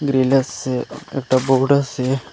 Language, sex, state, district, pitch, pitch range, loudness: Bengali, male, Assam, Hailakandi, 135 Hz, 130-140 Hz, -19 LUFS